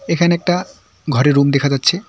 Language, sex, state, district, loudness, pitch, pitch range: Bengali, male, West Bengal, Cooch Behar, -15 LUFS, 165 Hz, 140-180 Hz